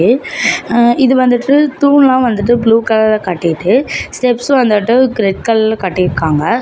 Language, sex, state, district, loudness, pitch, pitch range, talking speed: Tamil, female, Tamil Nadu, Namakkal, -11 LUFS, 235 Hz, 205-255 Hz, 120 wpm